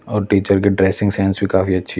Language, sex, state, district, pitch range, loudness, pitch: Hindi, male, Delhi, New Delhi, 95-100 Hz, -16 LUFS, 100 Hz